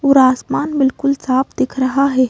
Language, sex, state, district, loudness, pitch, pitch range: Hindi, female, Madhya Pradesh, Bhopal, -16 LUFS, 270 Hz, 260-275 Hz